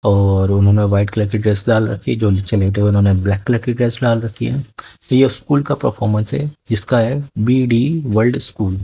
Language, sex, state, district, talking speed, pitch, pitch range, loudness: Hindi, male, Haryana, Jhajjar, 215 wpm, 110 Hz, 100-125 Hz, -16 LUFS